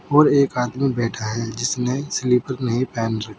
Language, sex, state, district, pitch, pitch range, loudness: Hindi, male, Uttar Pradesh, Saharanpur, 125 Hz, 115-130 Hz, -21 LUFS